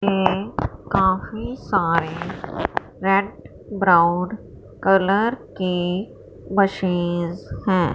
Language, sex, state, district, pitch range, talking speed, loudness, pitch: Hindi, female, Punjab, Fazilka, 175-195 Hz, 70 wpm, -21 LUFS, 185 Hz